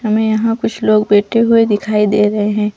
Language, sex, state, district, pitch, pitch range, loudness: Hindi, female, Chhattisgarh, Bastar, 215 Hz, 210-225 Hz, -13 LUFS